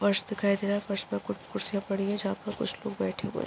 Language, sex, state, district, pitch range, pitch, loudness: Hindi, female, Bihar, Muzaffarpur, 190-205 Hz, 200 Hz, -30 LUFS